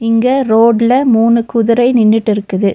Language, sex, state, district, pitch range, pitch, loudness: Tamil, female, Tamil Nadu, Nilgiris, 220-240 Hz, 230 Hz, -11 LUFS